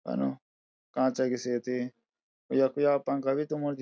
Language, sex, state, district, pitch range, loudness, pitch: Garhwali, male, Uttarakhand, Uttarkashi, 120-140 Hz, -30 LUFS, 130 Hz